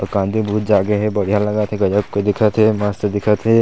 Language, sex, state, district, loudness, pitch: Chhattisgarhi, male, Chhattisgarh, Sarguja, -17 LUFS, 105 Hz